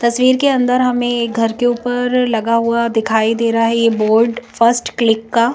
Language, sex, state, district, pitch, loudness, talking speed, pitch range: Hindi, female, Madhya Pradesh, Bhopal, 235 Hz, -15 LUFS, 195 wpm, 230-245 Hz